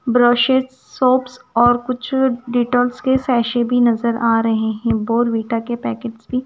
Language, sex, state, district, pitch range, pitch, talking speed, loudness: Hindi, female, Punjab, Kapurthala, 230-255 Hz, 240 Hz, 150 wpm, -17 LUFS